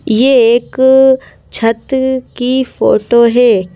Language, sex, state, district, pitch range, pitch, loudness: Hindi, female, Madhya Pradesh, Bhopal, 230-260 Hz, 245 Hz, -11 LUFS